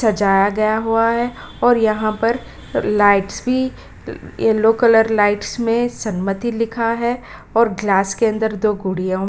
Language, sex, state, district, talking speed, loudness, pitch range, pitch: Hindi, female, Bihar, Kishanganj, 150 wpm, -17 LUFS, 205-230 Hz, 220 Hz